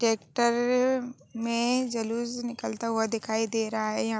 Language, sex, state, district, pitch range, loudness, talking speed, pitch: Hindi, female, Jharkhand, Sahebganj, 225-240 Hz, -28 LUFS, 140 wpm, 230 Hz